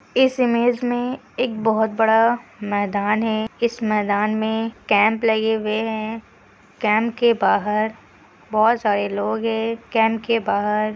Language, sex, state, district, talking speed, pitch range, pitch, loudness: Hindi, female, Bihar, Kishanganj, 140 wpm, 215-230 Hz, 220 Hz, -20 LUFS